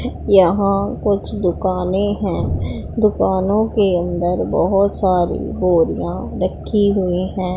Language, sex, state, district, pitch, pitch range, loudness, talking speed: Hindi, female, Punjab, Pathankot, 190 Hz, 180-200 Hz, -17 LUFS, 105 wpm